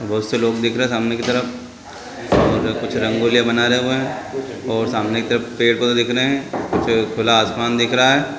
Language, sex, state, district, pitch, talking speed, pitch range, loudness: Hindi, male, Chhattisgarh, Bilaspur, 120 Hz, 220 wpm, 115-125 Hz, -18 LUFS